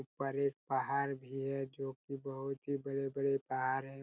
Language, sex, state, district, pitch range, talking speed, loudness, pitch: Hindi, male, Chhattisgarh, Raigarh, 135-140 Hz, 180 wpm, -38 LUFS, 135 Hz